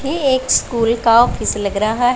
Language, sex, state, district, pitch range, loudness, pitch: Hindi, female, Punjab, Pathankot, 225-260 Hz, -15 LUFS, 235 Hz